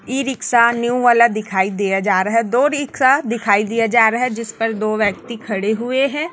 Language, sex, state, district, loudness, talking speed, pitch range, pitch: Hindi, female, Chhattisgarh, Raipur, -17 LUFS, 220 wpm, 215-250 Hz, 230 Hz